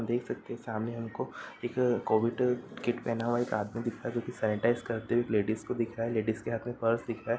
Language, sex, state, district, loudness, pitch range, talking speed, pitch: Hindi, female, Bihar, East Champaran, -32 LUFS, 115-120 Hz, 275 wpm, 115 Hz